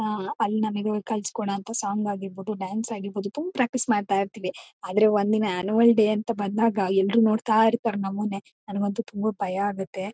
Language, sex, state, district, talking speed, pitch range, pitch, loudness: Kannada, female, Karnataka, Mysore, 160 wpm, 200-220 Hz, 210 Hz, -25 LUFS